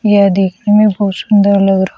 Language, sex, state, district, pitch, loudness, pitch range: Hindi, female, Uttar Pradesh, Shamli, 200 Hz, -11 LUFS, 195-210 Hz